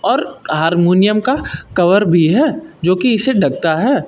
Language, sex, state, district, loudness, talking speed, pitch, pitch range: Hindi, male, Uttar Pradesh, Lucknow, -14 LUFS, 160 wpm, 190 Hz, 170-255 Hz